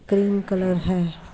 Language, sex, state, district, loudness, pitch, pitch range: Hindi, female, Uttar Pradesh, Budaun, -23 LUFS, 185 Hz, 180-200 Hz